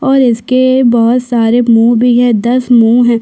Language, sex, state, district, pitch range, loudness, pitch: Hindi, female, Chhattisgarh, Sukma, 235-250 Hz, -9 LUFS, 240 Hz